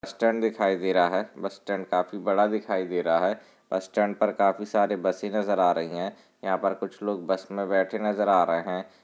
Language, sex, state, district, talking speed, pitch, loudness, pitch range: Hindi, male, Chhattisgarh, Raigarh, 225 wpm, 100 Hz, -26 LUFS, 95-105 Hz